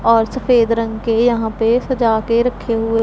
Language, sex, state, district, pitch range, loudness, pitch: Hindi, female, Punjab, Pathankot, 225-240 Hz, -16 LUFS, 230 Hz